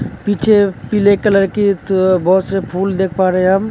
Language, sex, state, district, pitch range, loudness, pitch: Hindi, male, Uttar Pradesh, Jalaun, 185-205 Hz, -14 LUFS, 195 Hz